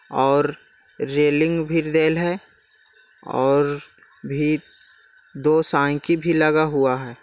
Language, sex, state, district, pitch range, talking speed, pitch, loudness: Hindi, male, Bihar, Jahanabad, 145-165 Hz, 110 wpm, 150 Hz, -20 LUFS